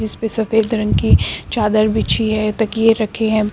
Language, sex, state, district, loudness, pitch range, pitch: Hindi, female, Uttar Pradesh, Shamli, -16 LUFS, 215-225 Hz, 220 Hz